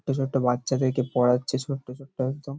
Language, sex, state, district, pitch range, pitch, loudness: Bengali, male, West Bengal, Paschim Medinipur, 130-135 Hz, 130 Hz, -26 LUFS